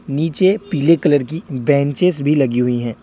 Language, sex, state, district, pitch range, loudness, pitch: Hindi, male, Jharkhand, Deoghar, 135-165 Hz, -16 LUFS, 145 Hz